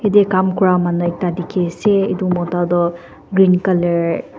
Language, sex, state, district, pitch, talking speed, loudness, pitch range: Nagamese, female, Nagaland, Dimapur, 180 Hz, 180 wpm, -16 LUFS, 175-190 Hz